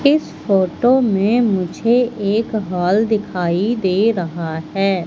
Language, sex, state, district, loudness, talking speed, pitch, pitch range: Hindi, female, Madhya Pradesh, Katni, -17 LUFS, 120 wpm, 200 Hz, 180-230 Hz